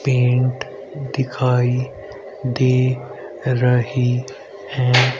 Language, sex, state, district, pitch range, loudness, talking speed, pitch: Hindi, male, Haryana, Rohtak, 125-135 Hz, -19 LUFS, 60 wpm, 125 Hz